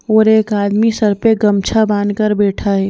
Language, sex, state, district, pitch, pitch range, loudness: Hindi, female, Madhya Pradesh, Bhopal, 210 Hz, 205-220 Hz, -14 LUFS